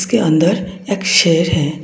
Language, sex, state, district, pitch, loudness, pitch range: Hindi, female, Tripura, West Tripura, 180 Hz, -14 LUFS, 160-200 Hz